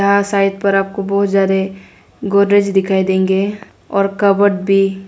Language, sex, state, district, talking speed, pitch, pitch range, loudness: Hindi, female, Arunachal Pradesh, Lower Dibang Valley, 140 wpm, 195 Hz, 195-200 Hz, -15 LUFS